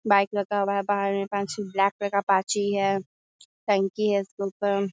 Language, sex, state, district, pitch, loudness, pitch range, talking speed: Hindi, female, Bihar, Sitamarhi, 200 Hz, -25 LUFS, 195-205 Hz, 205 wpm